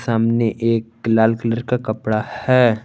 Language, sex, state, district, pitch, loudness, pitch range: Hindi, male, Jharkhand, Garhwa, 115 Hz, -19 LUFS, 110-120 Hz